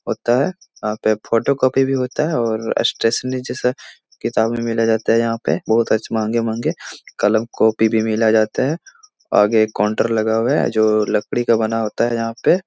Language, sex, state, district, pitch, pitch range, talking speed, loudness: Hindi, male, Bihar, Jahanabad, 115 Hz, 110-125 Hz, 195 wpm, -18 LUFS